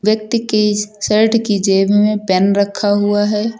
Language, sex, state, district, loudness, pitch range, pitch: Hindi, female, Uttar Pradesh, Lucknow, -14 LUFS, 200-215 Hz, 210 Hz